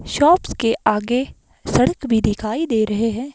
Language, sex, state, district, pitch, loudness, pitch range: Hindi, female, Himachal Pradesh, Shimla, 230 Hz, -19 LUFS, 220-280 Hz